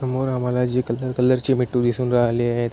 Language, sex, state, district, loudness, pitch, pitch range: Marathi, male, Maharashtra, Chandrapur, -21 LUFS, 125 Hz, 120-130 Hz